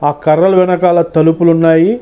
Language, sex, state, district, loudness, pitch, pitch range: Telugu, male, Andhra Pradesh, Chittoor, -10 LUFS, 165 Hz, 160-180 Hz